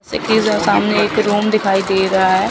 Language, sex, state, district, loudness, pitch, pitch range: Hindi, female, Chandigarh, Chandigarh, -15 LUFS, 205 Hz, 190-215 Hz